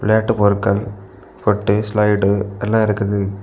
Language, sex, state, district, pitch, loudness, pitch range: Tamil, male, Tamil Nadu, Kanyakumari, 100 Hz, -17 LUFS, 100-105 Hz